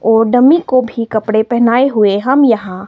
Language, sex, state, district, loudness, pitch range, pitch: Hindi, female, Himachal Pradesh, Shimla, -12 LUFS, 220-255 Hz, 230 Hz